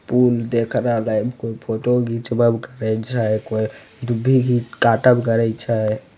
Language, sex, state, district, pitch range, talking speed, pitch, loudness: Maithili, male, Bihar, Begusarai, 110-125 Hz, 135 wpm, 115 Hz, -19 LUFS